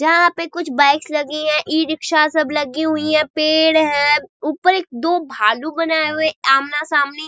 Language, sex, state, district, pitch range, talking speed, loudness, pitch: Hindi, female, Bihar, Saharsa, 295-320 Hz, 155 wpm, -16 LUFS, 310 Hz